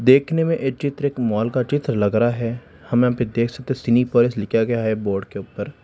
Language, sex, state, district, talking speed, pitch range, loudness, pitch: Hindi, male, Telangana, Hyderabad, 235 wpm, 110-135 Hz, -20 LUFS, 120 Hz